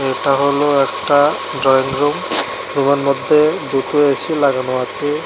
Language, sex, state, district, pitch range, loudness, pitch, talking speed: Bengali, male, Tripura, West Tripura, 135-145 Hz, -15 LUFS, 140 Hz, 125 wpm